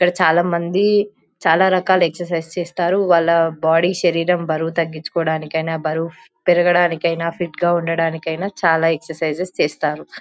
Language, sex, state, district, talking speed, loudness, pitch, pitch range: Telugu, female, Telangana, Karimnagar, 125 wpm, -18 LUFS, 170 Hz, 165-175 Hz